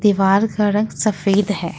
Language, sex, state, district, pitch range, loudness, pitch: Hindi, female, Jharkhand, Ranchi, 195-210 Hz, -17 LUFS, 205 Hz